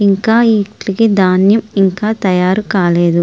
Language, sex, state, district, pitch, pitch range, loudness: Telugu, female, Andhra Pradesh, Srikakulam, 195 Hz, 185-220 Hz, -12 LUFS